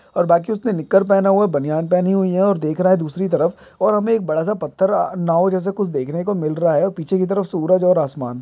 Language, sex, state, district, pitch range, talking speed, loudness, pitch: Hindi, male, Bihar, Saran, 165-195 Hz, 275 wpm, -18 LUFS, 185 Hz